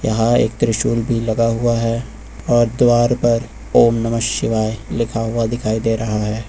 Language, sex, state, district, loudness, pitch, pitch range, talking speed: Hindi, male, Uttar Pradesh, Lucknow, -17 LUFS, 115 Hz, 110-120 Hz, 175 wpm